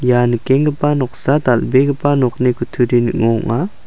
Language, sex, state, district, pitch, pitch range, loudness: Garo, male, Meghalaya, South Garo Hills, 125 Hz, 120-140 Hz, -15 LUFS